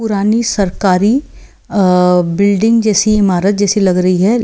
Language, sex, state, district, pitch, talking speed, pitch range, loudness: Hindi, female, Delhi, New Delhi, 200 Hz, 135 wpm, 185-215 Hz, -12 LUFS